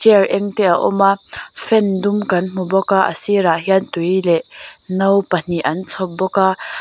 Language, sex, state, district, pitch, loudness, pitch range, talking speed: Mizo, female, Mizoram, Aizawl, 190 Hz, -16 LUFS, 180-200 Hz, 205 wpm